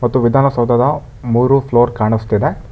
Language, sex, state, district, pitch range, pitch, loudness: Kannada, male, Karnataka, Bangalore, 120-135 Hz, 120 Hz, -14 LUFS